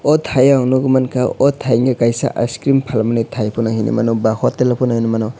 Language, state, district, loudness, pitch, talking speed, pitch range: Kokborok, Tripura, West Tripura, -16 LUFS, 125 Hz, 180 wpm, 115-130 Hz